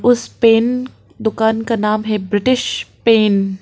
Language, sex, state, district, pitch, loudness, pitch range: Hindi, female, Arunachal Pradesh, Papum Pare, 225 Hz, -16 LUFS, 215-235 Hz